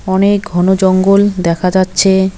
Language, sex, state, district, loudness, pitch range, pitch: Bengali, female, West Bengal, Cooch Behar, -11 LUFS, 185-195 Hz, 190 Hz